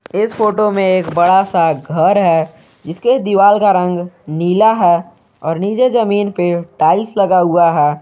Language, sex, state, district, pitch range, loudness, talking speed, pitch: Hindi, male, Jharkhand, Garhwa, 170-205 Hz, -13 LUFS, 165 wpm, 180 Hz